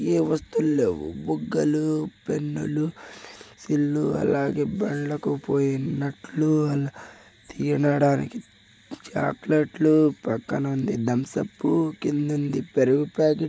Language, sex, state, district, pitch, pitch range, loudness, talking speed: Telugu, male, Telangana, Nalgonda, 145 Hz, 135-155 Hz, -24 LUFS, 90 wpm